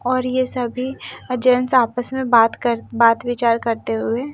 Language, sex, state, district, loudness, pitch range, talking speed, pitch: Hindi, female, Delhi, New Delhi, -18 LUFS, 230-255 Hz, 150 wpm, 245 Hz